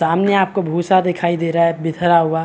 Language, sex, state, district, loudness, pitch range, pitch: Hindi, male, Chhattisgarh, Rajnandgaon, -16 LUFS, 165-185 Hz, 170 Hz